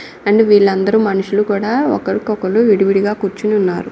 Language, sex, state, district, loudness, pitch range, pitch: Telugu, female, Andhra Pradesh, Guntur, -14 LUFS, 195-215 Hz, 205 Hz